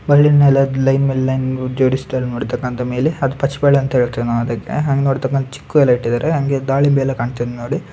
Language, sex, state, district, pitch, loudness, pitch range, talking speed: Kannada, male, Karnataka, Dakshina Kannada, 135 Hz, -16 LUFS, 125-140 Hz, 175 wpm